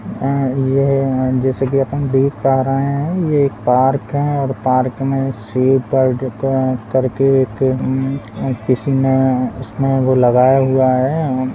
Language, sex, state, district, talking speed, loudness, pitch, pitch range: Hindi, male, Rajasthan, Churu, 130 wpm, -16 LUFS, 130 Hz, 130-135 Hz